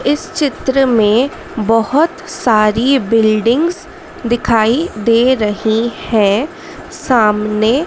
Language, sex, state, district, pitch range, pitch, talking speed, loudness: Hindi, female, Madhya Pradesh, Dhar, 220-285 Hz, 240 Hz, 85 wpm, -13 LUFS